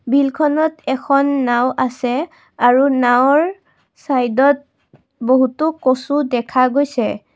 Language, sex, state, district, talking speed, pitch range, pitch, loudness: Assamese, female, Assam, Kamrup Metropolitan, 90 wpm, 255-290 Hz, 270 Hz, -16 LUFS